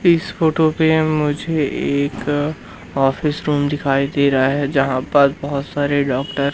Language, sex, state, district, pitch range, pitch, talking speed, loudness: Hindi, male, Madhya Pradesh, Umaria, 140-155 Hz, 145 Hz, 155 wpm, -18 LUFS